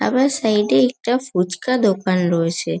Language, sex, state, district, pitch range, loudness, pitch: Bengali, female, West Bengal, North 24 Parganas, 170-250 Hz, -18 LUFS, 190 Hz